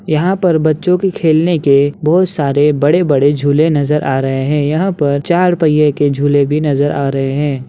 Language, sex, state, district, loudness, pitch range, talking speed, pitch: Hindi, male, Bihar, Begusarai, -13 LUFS, 140-160 Hz, 200 wpm, 150 Hz